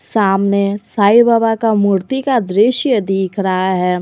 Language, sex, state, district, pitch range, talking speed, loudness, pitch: Hindi, female, Jharkhand, Garhwa, 195-230 Hz, 150 wpm, -14 LUFS, 200 Hz